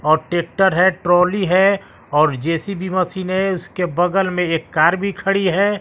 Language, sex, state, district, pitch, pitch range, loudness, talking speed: Hindi, male, Bihar, West Champaran, 180 Hz, 170-190 Hz, -17 LUFS, 175 wpm